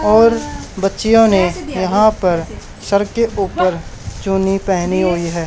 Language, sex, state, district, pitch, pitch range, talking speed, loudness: Hindi, male, Haryana, Charkhi Dadri, 195 Hz, 180-215 Hz, 130 wpm, -15 LUFS